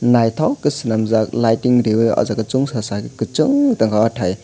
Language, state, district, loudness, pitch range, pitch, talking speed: Kokborok, Tripura, West Tripura, -17 LUFS, 110-125 Hz, 115 Hz, 175 wpm